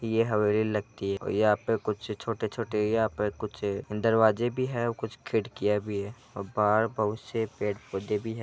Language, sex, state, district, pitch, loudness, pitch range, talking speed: Hindi, male, Uttar Pradesh, Hamirpur, 110 Hz, -29 LUFS, 105-115 Hz, 190 wpm